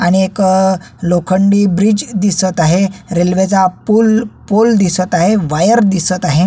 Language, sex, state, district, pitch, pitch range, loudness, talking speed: Marathi, male, Maharashtra, Solapur, 190 Hz, 180-205 Hz, -12 LUFS, 130 wpm